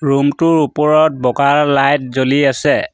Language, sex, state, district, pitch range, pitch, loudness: Assamese, male, Assam, Sonitpur, 140-150 Hz, 145 Hz, -13 LUFS